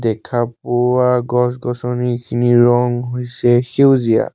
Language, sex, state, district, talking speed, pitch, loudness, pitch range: Assamese, male, Assam, Sonitpur, 95 wpm, 120 Hz, -16 LUFS, 120-125 Hz